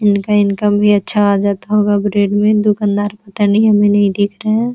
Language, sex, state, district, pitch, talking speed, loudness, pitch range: Hindi, female, Bihar, Araria, 205 Hz, 215 wpm, -13 LUFS, 205-210 Hz